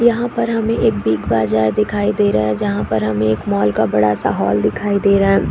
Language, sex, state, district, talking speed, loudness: Hindi, female, Chhattisgarh, Korba, 250 wpm, -16 LUFS